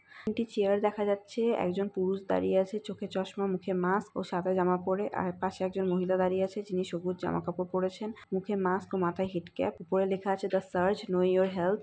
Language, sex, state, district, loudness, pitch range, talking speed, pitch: Bengali, female, West Bengal, North 24 Parganas, -31 LUFS, 185-200 Hz, 210 wpm, 190 Hz